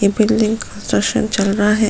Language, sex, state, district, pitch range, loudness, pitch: Hindi, female, Chhattisgarh, Sukma, 200-220 Hz, -17 LUFS, 215 Hz